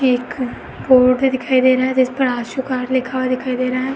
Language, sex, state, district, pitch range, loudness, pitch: Hindi, female, Uttar Pradesh, Etah, 255-260 Hz, -17 LUFS, 255 Hz